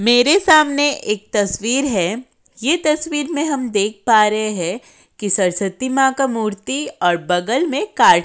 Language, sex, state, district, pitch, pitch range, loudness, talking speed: Hindi, female, Uttar Pradesh, Jyotiba Phule Nagar, 240 Hz, 205-285 Hz, -17 LUFS, 165 wpm